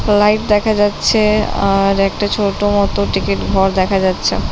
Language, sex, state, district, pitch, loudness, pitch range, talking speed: Bengali, female, West Bengal, Paschim Medinipur, 205 Hz, -14 LUFS, 195-210 Hz, 160 wpm